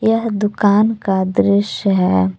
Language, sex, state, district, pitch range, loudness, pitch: Hindi, female, Jharkhand, Palamu, 190-215 Hz, -16 LUFS, 205 Hz